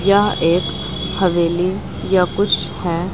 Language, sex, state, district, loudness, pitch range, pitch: Hindi, female, Uttar Pradesh, Lucknow, -18 LUFS, 170-195 Hz, 180 Hz